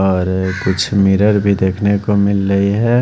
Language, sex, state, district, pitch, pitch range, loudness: Hindi, male, Haryana, Jhajjar, 100 Hz, 95-100 Hz, -14 LUFS